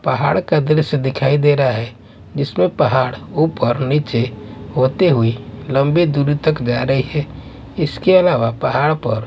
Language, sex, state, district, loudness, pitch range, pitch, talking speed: Hindi, male, Bihar, Katihar, -16 LUFS, 120-150 Hz, 135 Hz, 150 wpm